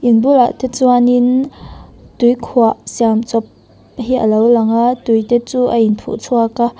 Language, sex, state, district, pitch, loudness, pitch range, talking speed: Mizo, female, Mizoram, Aizawl, 240 Hz, -13 LUFS, 230-250 Hz, 160 wpm